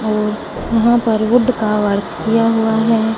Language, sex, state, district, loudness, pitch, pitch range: Hindi, female, Punjab, Fazilka, -15 LUFS, 220 Hz, 215-230 Hz